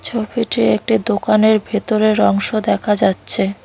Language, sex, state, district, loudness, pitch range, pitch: Bengali, female, West Bengal, Cooch Behar, -16 LUFS, 205-220 Hz, 215 Hz